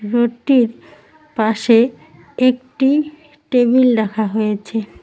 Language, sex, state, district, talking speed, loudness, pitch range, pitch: Bengali, female, West Bengal, Cooch Behar, 70 wpm, -16 LUFS, 220-260 Hz, 240 Hz